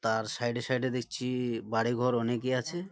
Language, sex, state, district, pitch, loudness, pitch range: Bengali, male, West Bengal, Malda, 120 Hz, -31 LUFS, 115-125 Hz